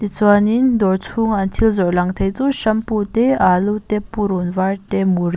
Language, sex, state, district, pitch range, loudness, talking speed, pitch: Mizo, female, Mizoram, Aizawl, 190-220 Hz, -17 LUFS, 190 wpm, 205 Hz